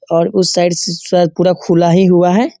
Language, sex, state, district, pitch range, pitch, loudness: Hindi, male, Bihar, Sitamarhi, 175-185 Hz, 180 Hz, -12 LUFS